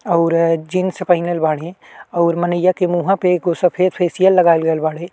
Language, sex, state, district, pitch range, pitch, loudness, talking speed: Bhojpuri, male, Uttar Pradesh, Deoria, 165-180 Hz, 175 Hz, -16 LUFS, 175 wpm